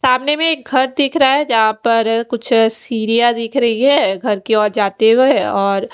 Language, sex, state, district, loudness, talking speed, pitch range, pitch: Hindi, female, Odisha, Khordha, -14 LUFS, 200 wpm, 220-270 Hz, 235 Hz